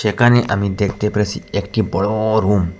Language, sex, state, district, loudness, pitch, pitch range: Bengali, male, Assam, Hailakandi, -17 LUFS, 105 Hz, 100-110 Hz